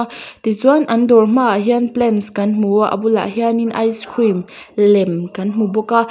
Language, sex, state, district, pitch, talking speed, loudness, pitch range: Mizo, female, Mizoram, Aizawl, 225 Hz, 185 wpm, -15 LUFS, 205-235 Hz